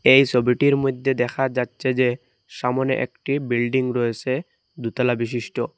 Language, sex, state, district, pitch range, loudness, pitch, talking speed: Bengali, male, Assam, Hailakandi, 120-135 Hz, -22 LUFS, 125 Hz, 125 wpm